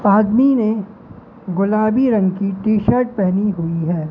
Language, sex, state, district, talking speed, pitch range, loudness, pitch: Hindi, male, Madhya Pradesh, Katni, 145 wpm, 190-220 Hz, -17 LUFS, 210 Hz